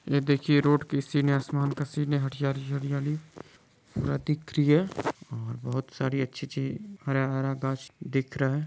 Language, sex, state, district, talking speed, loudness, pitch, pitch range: Hindi, male, Bihar, Muzaffarpur, 160 wpm, -29 LUFS, 140 Hz, 135-145 Hz